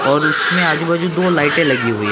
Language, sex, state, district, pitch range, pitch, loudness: Hindi, male, Gujarat, Gandhinagar, 125-175 Hz, 160 Hz, -15 LUFS